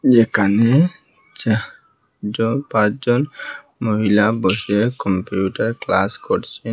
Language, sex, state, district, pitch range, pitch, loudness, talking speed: Bengali, male, Assam, Hailakandi, 105-125 Hz, 110 Hz, -18 LUFS, 80 wpm